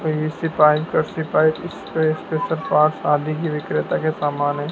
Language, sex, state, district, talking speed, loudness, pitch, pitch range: Hindi, male, Madhya Pradesh, Dhar, 180 wpm, -20 LUFS, 155 Hz, 150-160 Hz